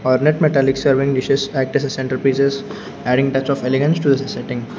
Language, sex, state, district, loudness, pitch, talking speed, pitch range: English, male, Arunachal Pradesh, Lower Dibang Valley, -17 LUFS, 135 Hz, 190 wpm, 130-140 Hz